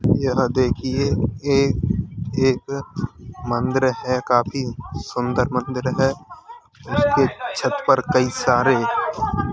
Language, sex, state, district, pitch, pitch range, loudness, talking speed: Hindi, male, Uttar Pradesh, Hamirpur, 130 Hz, 125-135 Hz, -21 LUFS, 95 wpm